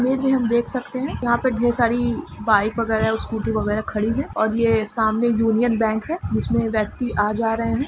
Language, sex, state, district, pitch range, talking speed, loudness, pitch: Hindi, female, Jharkhand, Sahebganj, 220-240 Hz, 215 wpm, -21 LUFS, 230 Hz